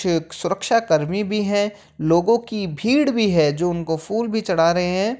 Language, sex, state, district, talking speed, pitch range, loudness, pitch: Hindi, male, Uttar Pradesh, Jyotiba Phule Nagar, 195 wpm, 165-220 Hz, -20 LUFS, 195 Hz